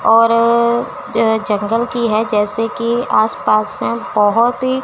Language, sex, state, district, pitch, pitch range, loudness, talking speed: Hindi, female, Chandigarh, Chandigarh, 230 Hz, 215-235 Hz, -15 LUFS, 150 wpm